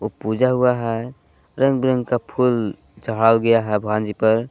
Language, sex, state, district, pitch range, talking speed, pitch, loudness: Hindi, male, Jharkhand, Palamu, 105-125 Hz, 175 wpm, 115 Hz, -19 LUFS